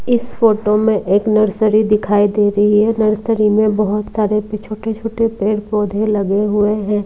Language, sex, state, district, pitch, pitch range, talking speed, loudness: Hindi, female, Maharashtra, Mumbai Suburban, 210 Hz, 210-215 Hz, 180 wpm, -15 LUFS